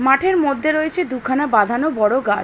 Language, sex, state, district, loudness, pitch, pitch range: Bengali, female, West Bengal, Malda, -18 LUFS, 270 Hz, 240-310 Hz